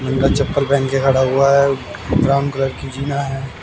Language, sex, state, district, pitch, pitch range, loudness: Hindi, male, Haryana, Jhajjar, 135 Hz, 135-140 Hz, -17 LUFS